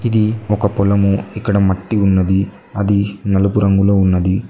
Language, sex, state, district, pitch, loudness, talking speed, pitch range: Telugu, male, Telangana, Mahabubabad, 100 Hz, -15 LUFS, 135 wpm, 95-105 Hz